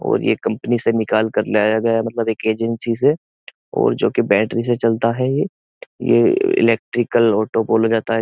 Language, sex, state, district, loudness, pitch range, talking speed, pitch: Hindi, male, Uttar Pradesh, Jyotiba Phule Nagar, -18 LUFS, 110-120 Hz, 180 wpm, 115 Hz